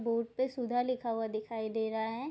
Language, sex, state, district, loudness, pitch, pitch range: Hindi, female, Bihar, Darbhanga, -34 LUFS, 230 Hz, 225-245 Hz